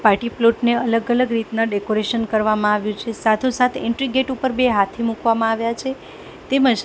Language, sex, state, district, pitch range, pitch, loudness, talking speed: Gujarati, female, Gujarat, Gandhinagar, 220-250 Hz, 230 Hz, -19 LUFS, 175 wpm